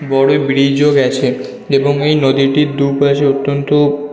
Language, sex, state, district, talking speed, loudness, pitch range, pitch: Bengali, male, West Bengal, North 24 Parganas, 130 wpm, -13 LUFS, 135-145 Hz, 140 Hz